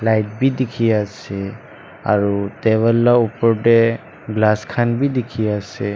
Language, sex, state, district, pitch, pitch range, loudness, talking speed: Nagamese, male, Nagaland, Dimapur, 110 Hz, 105-115 Hz, -18 LUFS, 140 wpm